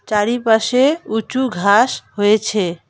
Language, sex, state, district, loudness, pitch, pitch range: Bengali, female, West Bengal, Alipurduar, -16 LUFS, 220 Hz, 205-250 Hz